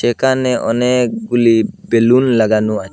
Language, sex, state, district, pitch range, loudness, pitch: Bengali, male, Assam, Hailakandi, 110-125 Hz, -14 LUFS, 120 Hz